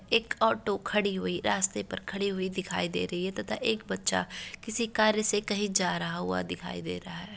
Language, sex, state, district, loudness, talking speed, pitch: Hindi, female, Uttar Pradesh, Varanasi, -30 LUFS, 210 wpm, 195 Hz